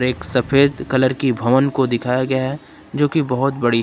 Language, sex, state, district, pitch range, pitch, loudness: Hindi, male, Uttar Pradesh, Lucknow, 125-135 Hz, 130 Hz, -18 LUFS